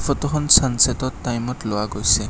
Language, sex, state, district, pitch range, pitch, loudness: Assamese, male, Assam, Kamrup Metropolitan, 105-135 Hz, 125 Hz, -18 LUFS